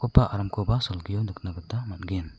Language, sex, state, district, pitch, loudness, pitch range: Garo, male, Meghalaya, South Garo Hills, 100 Hz, -28 LUFS, 95-110 Hz